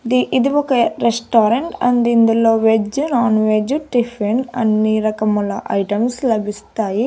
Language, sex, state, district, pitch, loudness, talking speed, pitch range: Telugu, female, Andhra Pradesh, Annamaya, 230 Hz, -16 LUFS, 120 wpm, 215-245 Hz